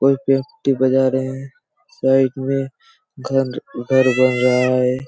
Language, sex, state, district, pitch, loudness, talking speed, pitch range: Hindi, male, Chhattisgarh, Raigarh, 135 Hz, -18 LUFS, 165 wpm, 130-135 Hz